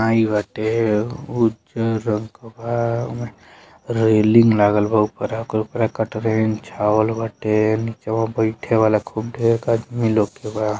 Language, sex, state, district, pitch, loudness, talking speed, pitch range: Bhojpuri, male, Uttar Pradesh, Deoria, 110 Hz, -20 LUFS, 130 wpm, 110-115 Hz